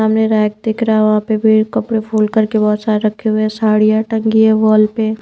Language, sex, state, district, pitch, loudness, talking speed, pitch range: Hindi, female, Bihar, Patna, 215 Hz, -14 LUFS, 240 wpm, 215-220 Hz